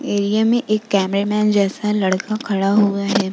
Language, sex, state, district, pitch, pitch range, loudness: Hindi, female, Bihar, Vaishali, 200 Hz, 195-210 Hz, -18 LUFS